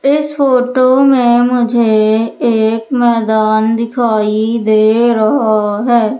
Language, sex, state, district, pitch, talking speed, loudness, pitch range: Hindi, female, Madhya Pradesh, Umaria, 230 Hz, 95 wpm, -11 LUFS, 220-245 Hz